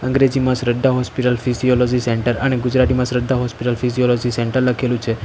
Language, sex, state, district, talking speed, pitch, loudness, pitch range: Gujarati, male, Gujarat, Valsad, 150 wpm, 125 Hz, -18 LUFS, 120-130 Hz